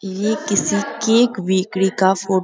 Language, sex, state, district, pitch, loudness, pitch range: Hindi, female, Bihar, Araria, 195 Hz, -18 LUFS, 190-215 Hz